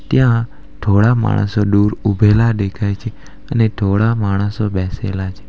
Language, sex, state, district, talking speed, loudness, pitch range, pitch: Gujarati, male, Gujarat, Valsad, 130 wpm, -16 LUFS, 100-115 Hz, 105 Hz